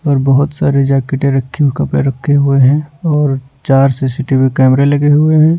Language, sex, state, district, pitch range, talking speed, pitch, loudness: Hindi, male, Punjab, Pathankot, 135-145 Hz, 205 wpm, 140 Hz, -12 LUFS